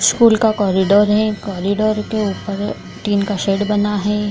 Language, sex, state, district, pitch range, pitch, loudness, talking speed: Hindi, female, Bihar, Kishanganj, 200-215 Hz, 205 Hz, -17 LUFS, 165 wpm